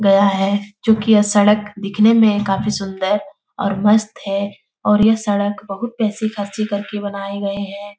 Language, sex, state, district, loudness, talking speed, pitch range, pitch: Hindi, female, Bihar, Jahanabad, -17 LUFS, 175 wpm, 200-215 Hz, 205 Hz